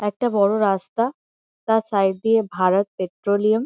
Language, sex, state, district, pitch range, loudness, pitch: Bengali, female, West Bengal, Kolkata, 195-225 Hz, -21 LUFS, 205 Hz